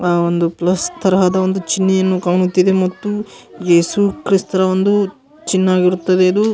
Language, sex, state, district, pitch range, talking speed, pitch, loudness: Kannada, male, Karnataka, Gulbarga, 180-195 Hz, 120 wpm, 185 Hz, -15 LUFS